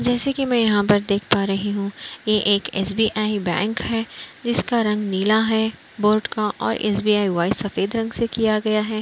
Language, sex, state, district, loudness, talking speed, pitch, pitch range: Hindi, female, Uttar Pradesh, Budaun, -21 LUFS, 195 wpm, 215 Hz, 205-225 Hz